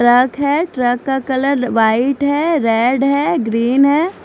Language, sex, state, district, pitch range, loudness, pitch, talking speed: Hindi, female, Chandigarh, Chandigarh, 245-285 Hz, -15 LUFS, 265 Hz, 155 wpm